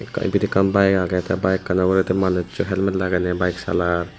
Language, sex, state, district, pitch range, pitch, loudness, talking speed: Chakma, male, Tripura, Unakoti, 90-95 Hz, 95 Hz, -20 LUFS, 185 wpm